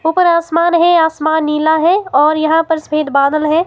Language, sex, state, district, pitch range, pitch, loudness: Hindi, female, Himachal Pradesh, Shimla, 305-335 Hz, 320 Hz, -13 LUFS